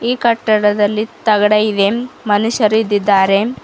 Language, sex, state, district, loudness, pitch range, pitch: Kannada, female, Karnataka, Bidar, -14 LUFS, 205-225 Hz, 215 Hz